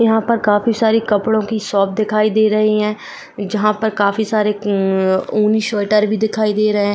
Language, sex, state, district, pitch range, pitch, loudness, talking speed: Hindi, female, Uttar Pradesh, Jyotiba Phule Nagar, 205-220 Hz, 215 Hz, -16 LUFS, 180 wpm